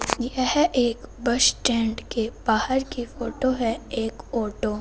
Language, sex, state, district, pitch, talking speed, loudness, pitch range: Hindi, female, Punjab, Fazilka, 240 Hz, 150 wpm, -24 LUFS, 225-260 Hz